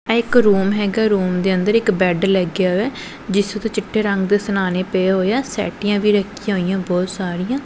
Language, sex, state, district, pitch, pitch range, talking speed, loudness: Punjabi, female, Punjab, Pathankot, 200 Hz, 185-210 Hz, 180 wpm, -18 LUFS